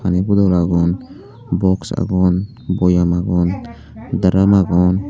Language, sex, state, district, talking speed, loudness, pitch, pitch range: Chakma, male, Tripura, Unakoti, 105 wpm, -16 LUFS, 90 Hz, 90-95 Hz